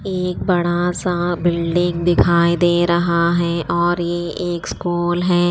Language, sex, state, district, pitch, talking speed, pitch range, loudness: Hindi, female, Chandigarh, Chandigarh, 175 Hz, 140 wpm, 170-175 Hz, -18 LUFS